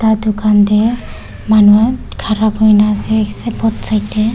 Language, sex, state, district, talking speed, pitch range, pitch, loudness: Nagamese, female, Nagaland, Kohima, 165 wpm, 210-220 Hz, 215 Hz, -12 LUFS